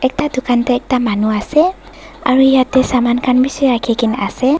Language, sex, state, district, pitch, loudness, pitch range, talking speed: Nagamese, female, Nagaland, Dimapur, 255 Hz, -14 LUFS, 240-265 Hz, 180 wpm